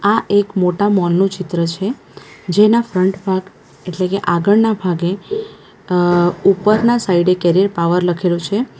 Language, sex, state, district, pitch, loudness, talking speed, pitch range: Gujarati, female, Gujarat, Valsad, 190 Hz, -15 LUFS, 145 wpm, 180-205 Hz